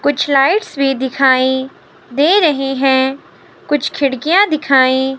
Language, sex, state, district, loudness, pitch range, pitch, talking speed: Hindi, male, Himachal Pradesh, Shimla, -13 LUFS, 265-295 Hz, 275 Hz, 115 wpm